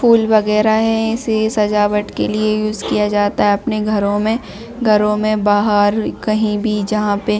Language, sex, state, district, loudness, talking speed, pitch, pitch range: Hindi, female, Chhattisgarh, Bilaspur, -16 LUFS, 170 wpm, 215 Hz, 210-220 Hz